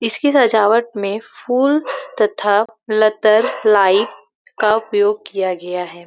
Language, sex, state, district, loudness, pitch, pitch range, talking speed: Hindi, female, Uttar Pradesh, Varanasi, -16 LUFS, 215 Hz, 205-225 Hz, 120 wpm